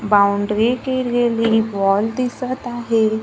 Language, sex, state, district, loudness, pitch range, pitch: Marathi, female, Maharashtra, Gondia, -18 LUFS, 210-245 Hz, 225 Hz